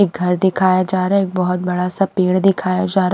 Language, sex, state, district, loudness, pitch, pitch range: Hindi, female, Himachal Pradesh, Shimla, -17 LUFS, 185 Hz, 180-190 Hz